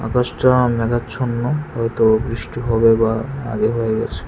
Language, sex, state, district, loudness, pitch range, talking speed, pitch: Bengali, male, Tripura, West Tripura, -18 LUFS, 110-125 Hz, 125 wpm, 115 Hz